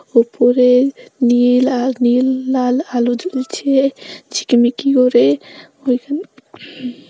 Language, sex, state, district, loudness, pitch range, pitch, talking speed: Bengali, female, West Bengal, North 24 Parganas, -15 LUFS, 245-270 Hz, 250 Hz, 95 wpm